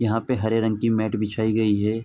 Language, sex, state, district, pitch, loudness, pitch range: Hindi, male, Uttar Pradesh, Etah, 110 Hz, -23 LUFS, 110-115 Hz